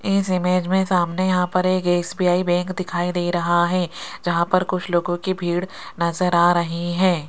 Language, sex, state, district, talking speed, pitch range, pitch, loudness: Hindi, female, Rajasthan, Jaipur, 190 wpm, 175-185 Hz, 180 Hz, -20 LUFS